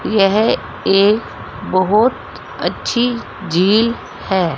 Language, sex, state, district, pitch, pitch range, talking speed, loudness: Hindi, female, Haryana, Rohtak, 205 Hz, 185-230 Hz, 80 wpm, -16 LUFS